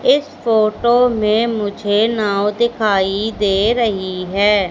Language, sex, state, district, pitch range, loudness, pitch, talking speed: Hindi, female, Madhya Pradesh, Katni, 205-230 Hz, -16 LUFS, 215 Hz, 115 wpm